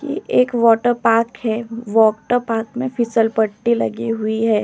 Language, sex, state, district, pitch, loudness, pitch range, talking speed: Hindi, female, Uttar Pradesh, Etah, 225 Hz, -18 LUFS, 220-235 Hz, 170 wpm